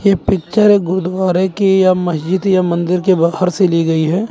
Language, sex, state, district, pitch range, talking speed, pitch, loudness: Hindi, male, Chandigarh, Chandigarh, 175-190 Hz, 210 wpm, 185 Hz, -14 LUFS